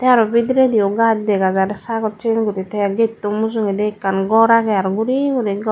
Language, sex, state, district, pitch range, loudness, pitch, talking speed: Chakma, female, Tripura, Dhalai, 205-230 Hz, -17 LUFS, 215 Hz, 170 wpm